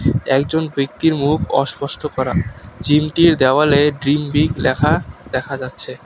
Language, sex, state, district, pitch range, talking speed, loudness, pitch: Bengali, male, West Bengal, Alipurduar, 130-150 Hz, 120 wpm, -17 LUFS, 145 Hz